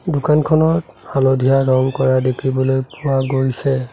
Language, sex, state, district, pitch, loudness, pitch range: Assamese, male, Assam, Sonitpur, 135 Hz, -17 LUFS, 130-145 Hz